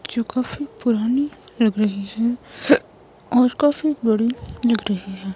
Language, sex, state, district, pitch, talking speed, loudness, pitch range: Hindi, female, Himachal Pradesh, Shimla, 235 Hz, 135 wpm, -21 LUFS, 210-250 Hz